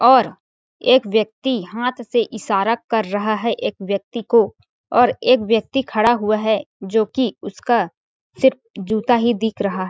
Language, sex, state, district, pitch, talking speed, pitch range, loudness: Hindi, female, Chhattisgarh, Balrampur, 225 Hz, 155 wpm, 210-245 Hz, -19 LUFS